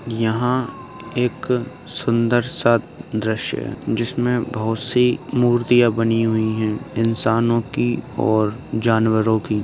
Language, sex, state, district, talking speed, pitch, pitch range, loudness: Hindi, male, Uttar Pradesh, Ghazipur, 110 wpm, 115 Hz, 110-120 Hz, -19 LUFS